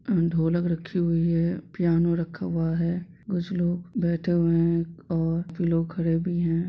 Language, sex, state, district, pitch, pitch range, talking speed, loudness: Hindi, male, Jharkhand, Sahebganj, 170 Hz, 165-175 Hz, 180 wpm, -26 LUFS